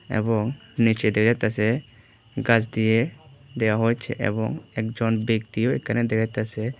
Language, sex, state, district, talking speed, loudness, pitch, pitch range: Bengali, male, Tripura, West Tripura, 125 wpm, -24 LUFS, 115 Hz, 110-120 Hz